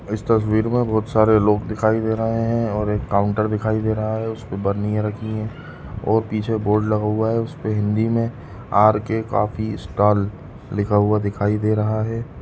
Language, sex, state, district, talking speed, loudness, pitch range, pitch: Hindi, female, Goa, North and South Goa, 195 wpm, -20 LUFS, 105-110 Hz, 110 Hz